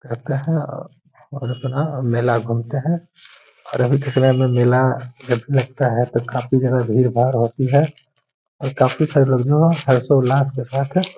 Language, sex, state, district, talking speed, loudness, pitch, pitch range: Hindi, male, Bihar, Gaya, 165 wpm, -18 LUFS, 130 Hz, 125-145 Hz